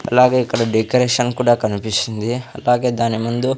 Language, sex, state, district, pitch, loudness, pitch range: Telugu, male, Andhra Pradesh, Sri Satya Sai, 120 Hz, -17 LUFS, 110-125 Hz